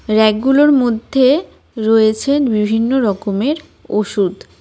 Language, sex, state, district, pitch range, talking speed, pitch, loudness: Bengali, female, West Bengal, Cooch Behar, 215-270 Hz, 80 wpm, 225 Hz, -15 LUFS